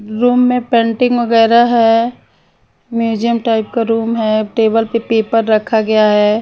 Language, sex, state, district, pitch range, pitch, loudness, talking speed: Hindi, female, Haryana, Charkhi Dadri, 220-235 Hz, 225 Hz, -13 LUFS, 150 wpm